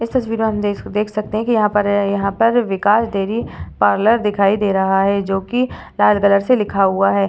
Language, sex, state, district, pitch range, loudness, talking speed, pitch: Hindi, female, Uttar Pradesh, Varanasi, 195-225 Hz, -17 LUFS, 220 wpm, 205 Hz